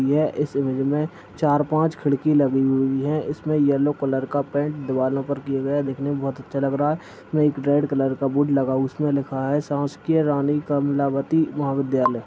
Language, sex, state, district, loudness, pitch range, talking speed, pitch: Hindi, male, Chhattisgarh, Sarguja, -22 LUFS, 135-150 Hz, 185 wpm, 140 Hz